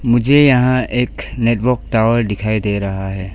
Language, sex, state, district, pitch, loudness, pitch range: Hindi, female, Arunachal Pradesh, Lower Dibang Valley, 115 Hz, -15 LUFS, 105-125 Hz